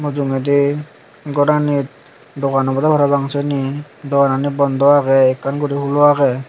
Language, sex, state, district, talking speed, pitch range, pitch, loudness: Chakma, male, Tripura, Dhalai, 120 wpm, 135-145 Hz, 140 Hz, -16 LUFS